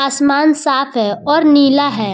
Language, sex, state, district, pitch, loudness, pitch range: Hindi, female, Jharkhand, Palamu, 280 Hz, -13 LUFS, 270-290 Hz